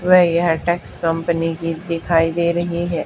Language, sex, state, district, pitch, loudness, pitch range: Hindi, female, Haryana, Charkhi Dadri, 170 Hz, -18 LUFS, 165-175 Hz